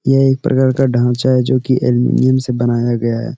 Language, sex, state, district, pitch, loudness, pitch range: Hindi, male, Uttar Pradesh, Etah, 125 Hz, -14 LUFS, 120-130 Hz